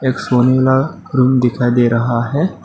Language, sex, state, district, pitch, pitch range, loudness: Hindi, male, Arunachal Pradesh, Lower Dibang Valley, 125 Hz, 120-130 Hz, -14 LUFS